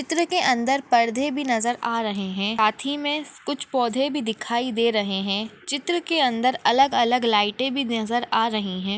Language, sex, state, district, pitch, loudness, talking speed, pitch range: Hindi, female, Maharashtra, Nagpur, 240 Hz, -23 LUFS, 185 wpm, 220-280 Hz